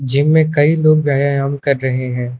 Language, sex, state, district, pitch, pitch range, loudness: Hindi, male, Uttar Pradesh, Lucknow, 140 Hz, 130-150 Hz, -14 LUFS